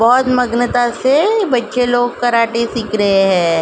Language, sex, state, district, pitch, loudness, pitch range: Hindi, female, Uttar Pradesh, Jalaun, 240 Hz, -14 LUFS, 230-250 Hz